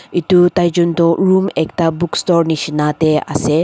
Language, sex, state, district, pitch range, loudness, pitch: Nagamese, female, Nagaland, Dimapur, 155-175 Hz, -14 LUFS, 170 Hz